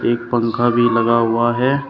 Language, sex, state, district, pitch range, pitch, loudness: Hindi, male, Uttar Pradesh, Shamli, 115-120 Hz, 120 Hz, -16 LUFS